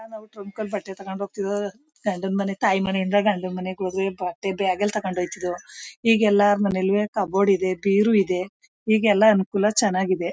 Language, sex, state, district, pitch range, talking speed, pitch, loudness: Kannada, female, Karnataka, Mysore, 190-210 Hz, 130 wpm, 200 Hz, -22 LUFS